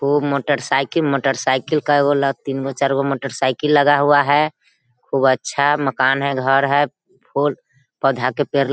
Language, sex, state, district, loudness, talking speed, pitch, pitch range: Hindi, female, Bihar, Sitamarhi, -18 LUFS, 185 wpm, 140 Hz, 135-145 Hz